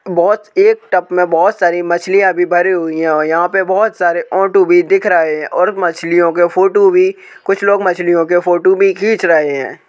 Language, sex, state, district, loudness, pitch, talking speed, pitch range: Hindi, male, Madhya Pradesh, Bhopal, -12 LUFS, 180 Hz, 210 wpm, 170-200 Hz